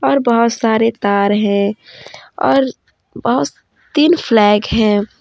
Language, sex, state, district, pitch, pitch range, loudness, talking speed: Hindi, female, Jharkhand, Deoghar, 225 Hz, 205-255 Hz, -14 LUFS, 115 wpm